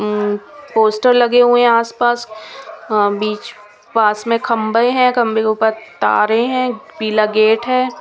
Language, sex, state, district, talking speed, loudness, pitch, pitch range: Hindi, female, Punjab, Kapurthala, 150 wpm, -15 LUFS, 225 Hz, 215-245 Hz